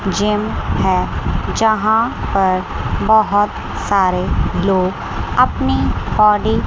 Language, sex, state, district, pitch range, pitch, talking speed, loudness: Hindi, female, Chandigarh, Chandigarh, 185-215 Hz, 200 Hz, 90 wpm, -16 LUFS